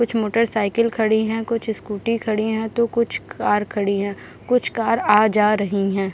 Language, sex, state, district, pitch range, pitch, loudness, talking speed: Hindi, female, Bihar, Jahanabad, 210-230 Hz, 220 Hz, -20 LUFS, 185 wpm